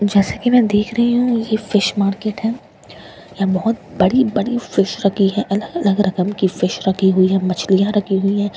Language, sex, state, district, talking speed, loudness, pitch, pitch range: Hindi, female, Bihar, Katihar, 210 wpm, -17 LUFS, 200 Hz, 190-220 Hz